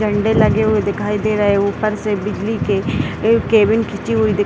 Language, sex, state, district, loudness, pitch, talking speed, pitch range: Hindi, female, Bihar, Gopalganj, -16 LUFS, 210 Hz, 215 wpm, 205-220 Hz